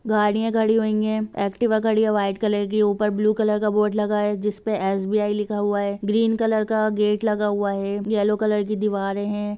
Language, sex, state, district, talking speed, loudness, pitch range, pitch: Hindi, female, Jharkhand, Jamtara, 215 wpm, -22 LUFS, 205-215 Hz, 210 Hz